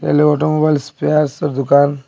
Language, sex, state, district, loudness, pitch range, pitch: Bengali, male, Assam, Hailakandi, -15 LUFS, 140-150 Hz, 150 Hz